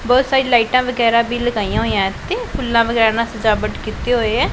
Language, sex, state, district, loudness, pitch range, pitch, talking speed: Punjabi, female, Punjab, Pathankot, -17 LUFS, 225-250 Hz, 235 Hz, 200 wpm